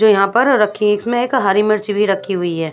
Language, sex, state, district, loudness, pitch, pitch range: Hindi, female, Bihar, Patna, -15 LUFS, 210 Hz, 195-220 Hz